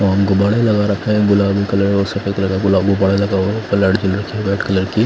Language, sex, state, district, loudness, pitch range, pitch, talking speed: Hindi, male, Punjab, Fazilka, -16 LUFS, 95-105 Hz, 100 Hz, 140 wpm